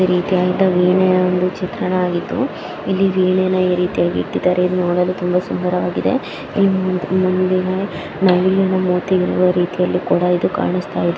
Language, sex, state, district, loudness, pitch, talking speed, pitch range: Kannada, female, Karnataka, Dharwad, -17 LUFS, 180 Hz, 125 wpm, 180-185 Hz